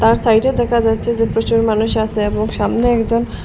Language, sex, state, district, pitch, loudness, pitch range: Bengali, female, Assam, Hailakandi, 225 Hz, -16 LUFS, 220-235 Hz